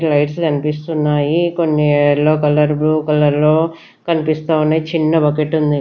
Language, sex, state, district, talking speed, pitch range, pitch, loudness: Telugu, female, Andhra Pradesh, Sri Satya Sai, 135 wpm, 150-160 Hz, 155 Hz, -15 LUFS